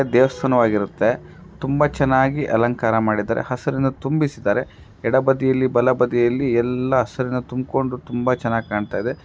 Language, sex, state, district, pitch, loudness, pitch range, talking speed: Kannada, male, Karnataka, Raichur, 125 Hz, -20 LUFS, 120-135 Hz, 95 wpm